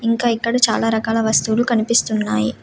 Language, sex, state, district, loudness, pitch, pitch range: Telugu, female, Telangana, Komaram Bheem, -17 LUFS, 225 Hz, 220-235 Hz